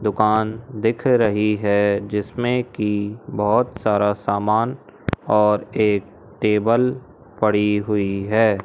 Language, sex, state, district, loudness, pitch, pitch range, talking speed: Hindi, male, Madhya Pradesh, Umaria, -20 LUFS, 105 Hz, 105-110 Hz, 105 wpm